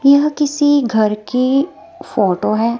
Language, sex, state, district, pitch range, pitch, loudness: Hindi, female, Himachal Pradesh, Shimla, 215-290 Hz, 260 Hz, -15 LUFS